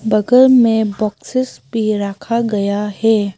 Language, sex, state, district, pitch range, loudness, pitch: Hindi, female, Arunachal Pradesh, Papum Pare, 205-230 Hz, -15 LUFS, 220 Hz